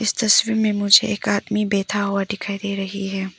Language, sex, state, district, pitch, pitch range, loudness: Hindi, female, Arunachal Pradesh, Papum Pare, 205 Hz, 200-210 Hz, -19 LUFS